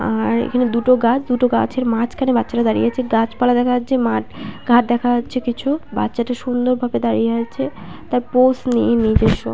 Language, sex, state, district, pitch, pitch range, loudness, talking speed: Bengali, female, West Bengal, Paschim Medinipur, 245 Hz, 235-250 Hz, -18 LUFS, 175 wpm